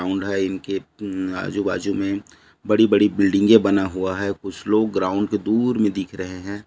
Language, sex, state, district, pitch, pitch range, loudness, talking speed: Hindi, male, Chhattisgarh, Bilaspur, 100 Hz, 95-105 Hz, -21 LUFS, 170 wpm